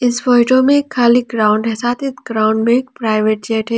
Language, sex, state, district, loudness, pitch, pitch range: Hindi, female, Jharkhand, Ranchi, -14 LUFS, 240 Hz, 220-250 Hz